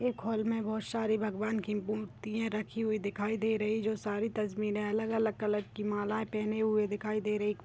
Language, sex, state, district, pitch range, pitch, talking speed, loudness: Hindi, female, Chhattisgarh, Raigarh, 210-220 Hz, 215 Hz, 195 wpm, -33 LUFS